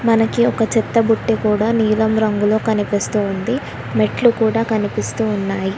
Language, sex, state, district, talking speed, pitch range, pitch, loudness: Telugu, female, Telangana, Hyderabad, 135 wpm, 205-225 Hz, 220 Hz, -17 LUFS